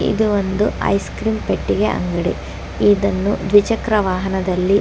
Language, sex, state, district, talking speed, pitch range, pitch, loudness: Kannada, female, Karnataka, Dakshina Kannada, 110 wpm, 190-210 Hz, 200 Hz, -18 LUFS